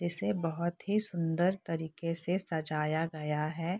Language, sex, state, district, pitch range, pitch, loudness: Hindi, female, Bihar, Purnia, 160-175 Hz, 165 Hz, -33 LUFS